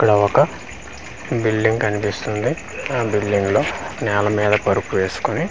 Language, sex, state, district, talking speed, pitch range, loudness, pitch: Telugu, male, Andhra Pradesh, Manyam, 130 wpm, 100-110 Hz, -19 LUFS, 105 Hz